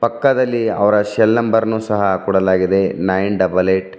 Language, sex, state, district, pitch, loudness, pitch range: Kannada, male, Karnataka, Bidar, 100 Hz, -16 LUFS, 95-110 Hz